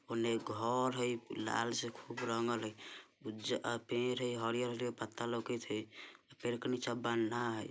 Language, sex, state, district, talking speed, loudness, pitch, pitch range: Bajjika, male, Bihar, Vaishali, 155 wpm, -38 LUFS, 120 Hz, 115-120 Hz